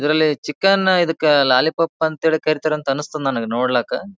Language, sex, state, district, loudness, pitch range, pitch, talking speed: Kannada, male, Karnataka, Bijapur, -18 LUFS, 140-160 Hz, 155 Hz, 160 wpm